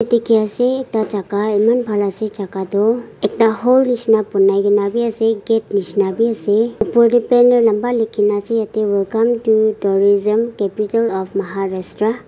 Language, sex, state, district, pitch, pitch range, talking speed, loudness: Nagamese, female, Nagaland, Kohima, 220 Hz, 205-230 Hz, 175 wpm, -16 LUFS